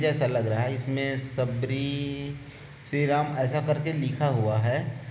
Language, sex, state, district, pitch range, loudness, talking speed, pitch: Hindi, male, Chhattisgarh, Bilaspur, 130-145 Hz, -27 LUFS, 165 wpm, 135 Hz